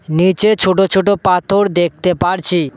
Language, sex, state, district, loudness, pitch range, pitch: Bengali, male, West Bengal, Cooch Behar, -13 LUFS, 175-195 Hz, 185 Hz